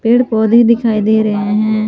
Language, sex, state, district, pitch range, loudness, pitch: Hindi, female, Jharkhand, Palamu, 215-230 Hz, -12 LUFS, 220 Hz